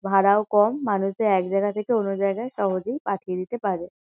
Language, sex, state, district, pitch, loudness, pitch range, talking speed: Bengali, female, West Bengal, Kolkata, 200 Hz, -23 LUFS, 195-215 Hz, 175 wpm